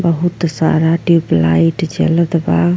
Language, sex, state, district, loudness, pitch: Bhojpuri, female, Uttar Pradesh, Ghazipur, -14 LUFS, 165 Hz